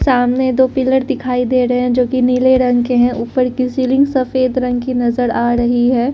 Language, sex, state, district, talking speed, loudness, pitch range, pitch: Hindi, female, Delhi, New Delhi, 225 wpm, -14 LUFS, 245-255 Hz, 250 Hz